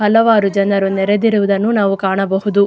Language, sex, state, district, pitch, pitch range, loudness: Kannada, female, Karnataka, Dakshina Kannada, 200 Hz, 195-210 Hz, -14 LUFS